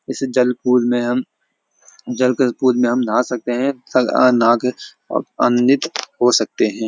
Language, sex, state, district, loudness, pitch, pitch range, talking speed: Hindi, male, Uttarakhand, Uttarkashi, -17 LUFS, 125 Hz, 120-130 Hz, 165 wpm